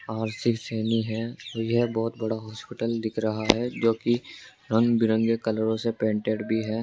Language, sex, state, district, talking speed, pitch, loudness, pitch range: Hindi, male, Rajasthan, Jaipur, 165 wpm, 115 Hz, -26 LUFS, 110-115 Hz